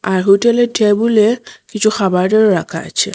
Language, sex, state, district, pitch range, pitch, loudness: Bengali, female, Assam, Hailakandi, 190-220 Hz, 210 Hz, -13 LUFS